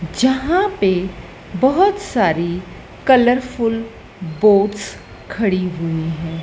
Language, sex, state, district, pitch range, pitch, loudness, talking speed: Hindi, female, Madhya Pradesh, Dhar, 175-255 Hz, 205 Hz, -17 LUFS, 85 wpm